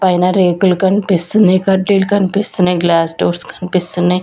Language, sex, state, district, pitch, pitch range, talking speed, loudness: Telugu, female, Andhra Pradesh, Sri Satya Sai, 185 Hz, 180-195 Hz, 115 wpm, -13 LUFS